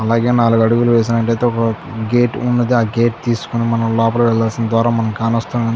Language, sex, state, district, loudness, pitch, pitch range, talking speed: Telugu, male, Andhra Pradesh, Chittoor, -15 LUFS, 115 Hz, 115-120 Hz, 165 wpm